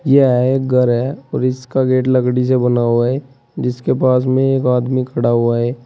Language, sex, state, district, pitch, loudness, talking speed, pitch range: Hindi, male, Uttar Pradesh, Saharanpur, 125 Hz, -15 LUFS, 205 wpm, 125-130 Hz